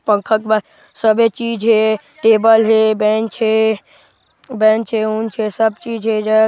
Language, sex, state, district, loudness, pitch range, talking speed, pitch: Chhattisgarhi, male, Chhattisgarh, Sarguja, -15 LUFS, 215-225 Hz, 165 wpm, 220 Hz